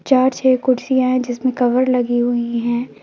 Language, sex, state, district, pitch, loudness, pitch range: Hindi, female, Jharkhand, Garhwa, 250 Hz, -17 LUFS, 240-255 Hz